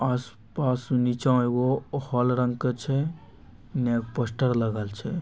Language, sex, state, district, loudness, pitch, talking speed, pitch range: Angika, male, Bihar, Begusarai, -26 LUFS, 125 Hz, 140 wpm, 120-130 Hz